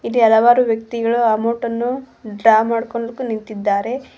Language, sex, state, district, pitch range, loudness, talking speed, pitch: Kannada, female, Karnataka, Koppal, 220-240 Hz, -17 LUFS, 115 wpm, 230 Hz